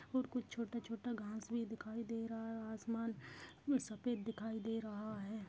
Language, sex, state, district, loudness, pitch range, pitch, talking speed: Hindi, female, Maharashtra, Pune, -44 LUFS, 220-235 Hz, 225 Hz, 175 wpm